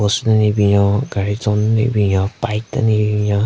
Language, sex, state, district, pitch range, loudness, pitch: Rengma, male, Nagaland, Kohima, 105-110 Hz, -16 LUFS, 105 Hz